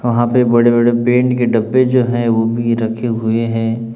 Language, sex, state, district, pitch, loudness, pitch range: Hindi, male, Maharashtra, Gondia, 120 Hz, -14 LUFS, 115-120 Hz